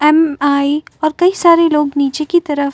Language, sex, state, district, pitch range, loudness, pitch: Hindi, female, Uttar Pradesh, Muzaffarnagar, 285-330 Hz, -13 LUFS, 300 Hz